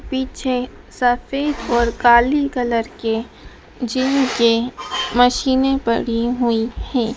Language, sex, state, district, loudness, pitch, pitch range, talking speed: Hindi, female, Madhya Pradesh, Dhar, -18 LUFS, 245 Hz, 230-260 Hz, 100 wpm